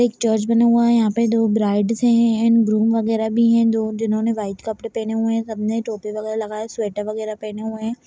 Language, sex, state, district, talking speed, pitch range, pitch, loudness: Hindi, female, Chhattisgarh, Balrampur, 240 wpm, 215-230 Hz, 225 Hz, -19 LUFS